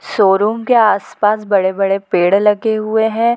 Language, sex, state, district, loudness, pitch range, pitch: Hindi, female, Chhattisgarh, Bilaspur, -14 LUFS, 195-220 Hz, 210 Hz